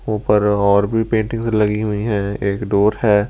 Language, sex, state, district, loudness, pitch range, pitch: Hindi, male, Delhi, New Delhi, -17 LUFS, 100-110 Hz, 105 Hz